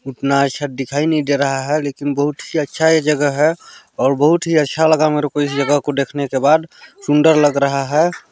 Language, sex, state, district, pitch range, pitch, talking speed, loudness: Chhattisgarhi, male, Chhattisgarh, Balrampur, 140-155 Hz, 145 Hz, 225 wpm, -16 LUFS